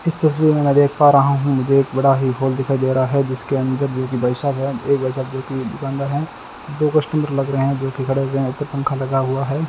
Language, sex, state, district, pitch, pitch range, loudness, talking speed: Hindi, male, Rajasthan, Bikaner, 135 Hz, 135-140 Hz, -18 LUFS, 285 wpm